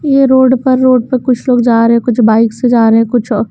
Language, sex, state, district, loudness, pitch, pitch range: Hindi, female, Bihar, West Champaran, -10 LUFS, 245 Hz, 230-255 Hz